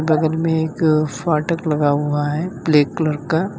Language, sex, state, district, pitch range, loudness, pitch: Hindi, male, Uttar Pradesh, Lalitpur, 150-160 Hz, -18 LUFS, 155 Hz